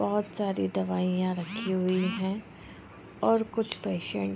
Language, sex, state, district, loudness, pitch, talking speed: Hindi, female, Bihar, Gopalganj, -29 LUFS, 185 Hz, 140 wpm